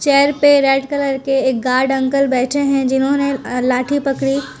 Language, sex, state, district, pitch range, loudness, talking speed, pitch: Hindi, female, Gujarat, Valsad, 265-280 Hz, -16 LUFS, 170 wpm, 270 Hz